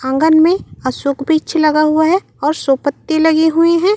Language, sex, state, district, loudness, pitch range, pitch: Chhattisgarhi, female, Chhattisgarh, Raigarh, -14 LUFS, 290-325 Hz, 315 Hz